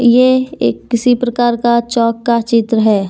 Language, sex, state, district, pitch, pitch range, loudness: Hindi, female, Jharkhand, Deoghar, 235 Hz, 225-245 Hz, -13 LUFS